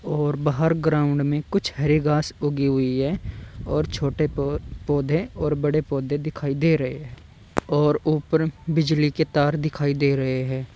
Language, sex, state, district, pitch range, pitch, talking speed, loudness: Hindi, male, Uttar Pradesh, Saharanpur, 140-155 Hz, 150 Hz, 160 wpm, -23 LUFS